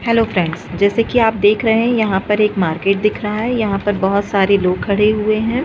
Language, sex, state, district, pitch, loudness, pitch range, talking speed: Hindi, female, Chhattisgarh, Bastar, 210 Hz, -16 LUFS, 195-220 Hz, 245 wpm